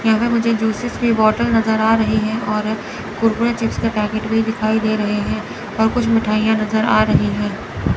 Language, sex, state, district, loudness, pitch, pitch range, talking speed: Hindi, female, Chandigarh, Chandigarh, -18 LUFS, 220 Hz, 215-225 Hz, 195 wpm